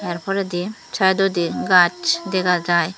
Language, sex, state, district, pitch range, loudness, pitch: Chakma, female, Tripura, Dhalai, 175-195 Hz, -19 LUFS, 185 Hz